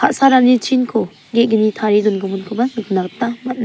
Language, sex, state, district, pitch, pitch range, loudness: Garo, female, Meghalaya, South Garo Hills, 230 Hz, 210-250 Hz, -16 LUFS